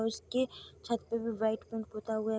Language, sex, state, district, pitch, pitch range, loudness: Hindi, female, Bihar, Darbhanga, 225 Hz, 220-230 Hz, -35 LUFS